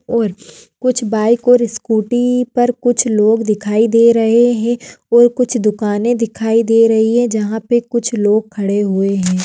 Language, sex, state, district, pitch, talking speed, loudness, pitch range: Hindi, female, Maharashtra, Chandrapur, 230 Hz, 165 wpm, -14 LUFS, 215-240 Hz